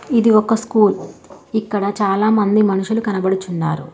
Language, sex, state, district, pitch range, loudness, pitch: Telugu, female, Telangana, Hyderabad, 195-220 Hz, -17 LUFS, 210 Hz